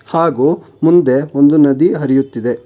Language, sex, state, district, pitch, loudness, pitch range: Kannada, male, Karnataka, Bangalore, 140 Hz, -12 LUFS, 130-155 Hz